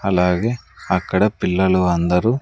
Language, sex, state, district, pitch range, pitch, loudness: Telugu, male, Andhra Pradesh, Sri Satya Sai, 90-105 Hz, 95 Hz, -18 LUFS